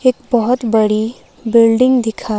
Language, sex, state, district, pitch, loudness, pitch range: Hindi, female, Himachal Pradesh, Shimla, 230 Hz, -14 LUFS, 220-250 Hz